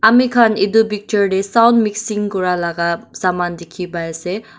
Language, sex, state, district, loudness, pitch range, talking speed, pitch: Nagamese, female, Nagaland, Dimapur, -16 LUFS, 175-220 Hz, 120 wpm, 200 Hz